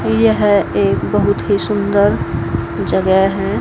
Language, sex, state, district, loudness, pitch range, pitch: Hindi, female, Haryana, Jhajjar, -15 LUFS, 190-200 Hz, 195 Hz